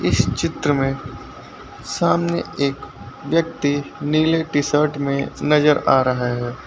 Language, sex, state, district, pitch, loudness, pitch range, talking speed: Hindi, male, Uttar Pradesh, Lucknow, 140 Hz, -20 LUFS, 130-150 Hz, 125 wpm